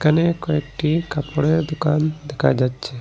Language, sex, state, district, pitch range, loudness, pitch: Bengali, male, Assam, Hailakandi, 150-155 Hz, -21 LUFS, 150 Hz